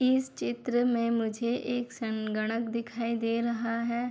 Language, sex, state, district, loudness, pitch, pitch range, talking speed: Hindi, female, Bihar, Bhagalpur, -30 LUFS, 235 Hz, 230-240 Hz, 145 wpm